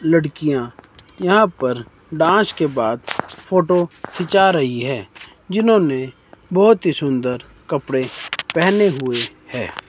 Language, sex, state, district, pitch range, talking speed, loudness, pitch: Hindi, male, Himachal Pradesh, Shimla, 125-185 Hz, 110 wpm, -18 LUFS, 145 Hz